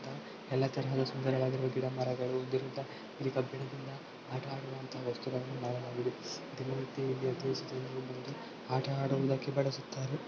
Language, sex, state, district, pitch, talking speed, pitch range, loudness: Kannada, male, Karnataka, Belgaum, 130 Hz, 125 wpm, 130-135 Hz, -37 LUFS